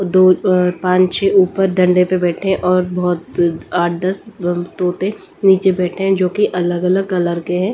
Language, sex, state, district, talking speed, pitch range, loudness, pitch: Hindi, female, Delhi, New Delhi, 180 wpm, 180-190 Hz, -16 LUFS, 185 Hz